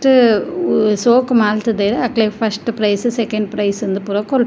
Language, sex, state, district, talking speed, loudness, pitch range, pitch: Tulu, female, Karnataka, Dakshina Kannada, 150 wpm, -16 LUFS, 210-240 Hz, 220 Hz